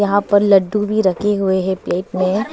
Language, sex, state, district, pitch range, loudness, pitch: Hindi, female, Arunachal Pradesh, Papum Pare, 190-205 Hz, -16 LUFS, 200 Hz